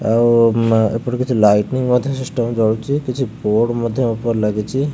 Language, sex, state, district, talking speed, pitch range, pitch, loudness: Odia, male, Odisha, Khordha, 170 wpm, 110-130 Hz, 115 Hz, -17 LUFS